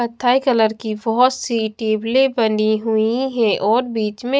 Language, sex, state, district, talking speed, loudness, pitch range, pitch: Hindi, female, Bihar, Katihar, 165 wpm, -18 LUFS, 220-250 Hz, 225 Hz